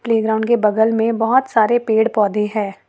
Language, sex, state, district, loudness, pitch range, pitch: Hindi, female, Jharkhand, Ranchi, -16 LUFS, 215-230 Hz, 220 Hz